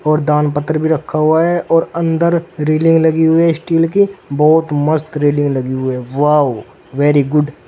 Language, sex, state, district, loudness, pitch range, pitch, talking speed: Hindi, male, Uttar Pradesh, Saharanpur, -14 LUFS, 145-165 Hz, 155 Hz, 180 wpm